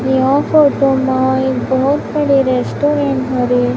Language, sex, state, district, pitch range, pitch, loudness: Hindi, female, Chhattisgarh, Raipur, 260-280 Hz, 265 Hz, -14 LUFS